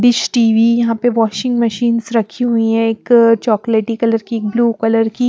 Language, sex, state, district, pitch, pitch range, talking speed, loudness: Hindi, female, Bihar, West Champaran, 230 Hz, 225-235 Hz, 190 wpm, -14 LUFS